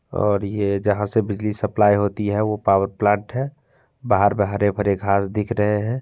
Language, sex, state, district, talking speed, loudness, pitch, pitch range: Hindi, male, Bihar, Gopalganj, 190 wpm, -20 LUFS, 105 Hz, 100-110 Hz